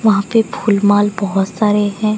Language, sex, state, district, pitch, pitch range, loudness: Hindi, female, Odisha, Sambalpur, 205 Hz, 200-215 Hz, -15 LUFS